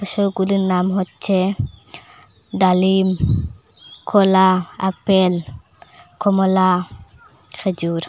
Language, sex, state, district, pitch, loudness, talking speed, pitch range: Bengali, female, Assam, Hailakandi, 185 Hz, -17 LUFS, 60 wpm, 170-190 Hz